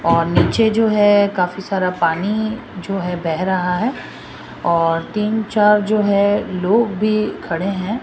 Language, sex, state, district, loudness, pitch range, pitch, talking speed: Hindi, female, Rajasthan, Jaipur, -17 LUFS, 180-215 Hz, 200 Hz, 155 wpm